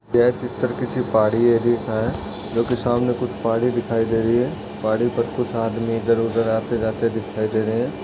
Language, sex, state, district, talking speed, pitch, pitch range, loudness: Hindi, male, Uttar Pradesh, Etah, 200 wpm, 115 Hz, 110-120 Hz, -21 LUFS